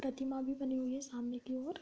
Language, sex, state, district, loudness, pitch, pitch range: Hindi, female, Uttar Pradesh, Budaun, -40 LUFS, 265 Hz, 255-270 Hz